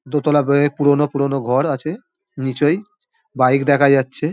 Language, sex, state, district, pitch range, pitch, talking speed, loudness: Bengali, male, West Bengal, Dakshin Dinajpur, 140-155 Hz, 145 Hz, 140 wpm, -17 LUFS